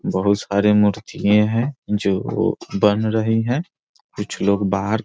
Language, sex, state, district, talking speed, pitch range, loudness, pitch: Hindi, male, Bihar, Muzaffarpur, 140 wpm, 100-110 Hz, -19 LUFS, 105 Hz